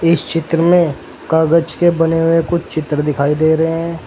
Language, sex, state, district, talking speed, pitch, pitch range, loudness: Hindi, male, Uttar Pradesh, Saharanpur, 190 wpm, 165 Hz, 160-165 Hz, -15 LUFS